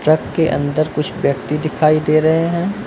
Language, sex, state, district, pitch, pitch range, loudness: Hindi, male, Uttar Pradesh, Lucknow, 155 Hz, 150-165 Hz, -16 LUFS